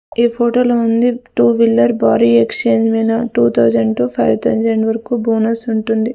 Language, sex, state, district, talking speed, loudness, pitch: Telugu, female, Andhra Pradesh, Sri Satya Sai, 165 wpm, -14 LUFS, 225 Hz